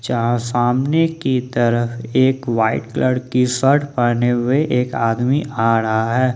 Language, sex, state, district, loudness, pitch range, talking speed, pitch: Hindi, male, Jharkhand, Ranchi, -17 LUFS, 120-130 Hz, 150 wpm, 120 Hz